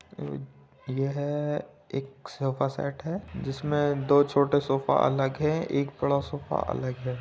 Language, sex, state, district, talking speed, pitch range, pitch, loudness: Hindi, male, Uttar Pradesh, Budaun, 140 wpm, 135-145 Hz, 140 Hz, -28 LUFS